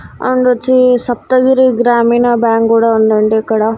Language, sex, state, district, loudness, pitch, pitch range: Telugu, female, Andhra Pradesh, Annamaya, -11 LUFS, 240 Hz, 225-250 Hz